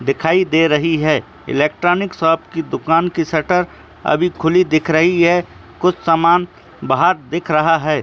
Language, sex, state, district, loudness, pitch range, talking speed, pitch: Hindi, male, Uttar Pradesh, Muzaffarnagar, -16 LUFS, 155-175 Hz, 155 wpm, 165 Hz